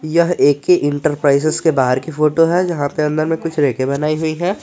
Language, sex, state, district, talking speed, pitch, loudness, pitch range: Hindi, male, Jharkhand, Garhwa, 235 wpm, 155 Hz, -16 LUFS, 145-165 Hz